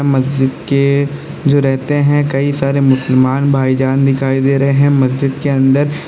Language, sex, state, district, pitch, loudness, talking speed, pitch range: Hindi, male, Uttar Pradesh, Lalitpur, 140 Hz, -13 LUFS, 160 wpm, 135-140 Hz